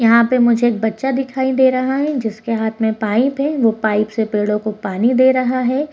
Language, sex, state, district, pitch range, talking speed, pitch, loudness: Hindi, female, Bihar, Begusarai, 220-260 Hz, 235 wpm, 235 Hz, -16 LUFS